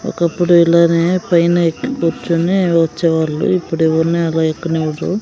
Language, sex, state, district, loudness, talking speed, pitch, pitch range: Telugu, female, Andhra Pradesh, Sri Satya Sai, -15 LUFS, 115 wpm, 170 Hz, 165-175 Hz